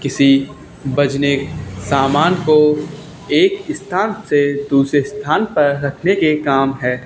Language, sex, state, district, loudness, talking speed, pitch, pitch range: Hindi, male, Haryana, Charkhi Dadri, -16 LUFS, 120 wpm, 145 Hz, 140-155 Hz